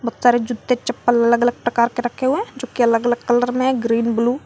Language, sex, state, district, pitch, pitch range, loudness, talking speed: Hindi, female, Jharkhand, Garhwa, 240 Hz, 235-245 Hz, -18 LUFS, 270 wpm